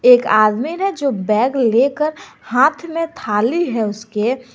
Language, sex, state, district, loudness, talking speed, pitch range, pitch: Hindi, female, Jharkhand, Garhwa, -17 LUFS, 145 wpm, 220-300 Hz, 250 Hz